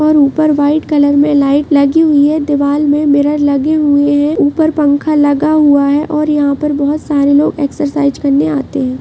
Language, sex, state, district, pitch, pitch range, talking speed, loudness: Hindi, female, Uttar Pradesh, Jalaun, 290 Hz, 285-300 Hz, 200 wpm, -11 LUFS